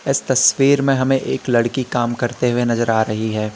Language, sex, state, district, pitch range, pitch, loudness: Hindi, male, Uttar Pradesh, Lalitpur, 115-130 Hz, 120 Hz, -17 LUFS